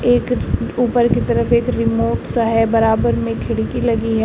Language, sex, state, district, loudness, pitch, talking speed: Hindi, female, Uttar Pradesh, Shamli, -17 LUFS, 225 Hz, 185 wpm